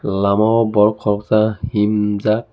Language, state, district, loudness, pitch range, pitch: Kokborok, Tripura, Dhalai, -16 LUFS, 105-110 Hz, 105 Hz